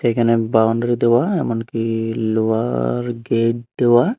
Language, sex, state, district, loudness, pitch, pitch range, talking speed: Bengali, male, Tripura, Unakoti, -18 LUFS, 115 Hz, 115-120 Hz, 100 wpm